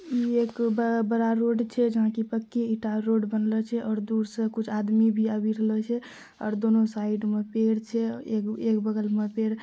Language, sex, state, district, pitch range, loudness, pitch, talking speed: Maithili, female, Bihar, Purnia, 215-230 Hz, -26 LUFS, 220 Hz, 195 wpm